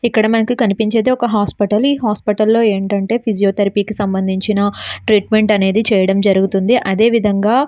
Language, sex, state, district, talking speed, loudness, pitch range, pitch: Telugu, female, Andhra Pradesh, Srikakulam, 135 wpm, -14 LUFS, 200-225 Hz, 210 Hz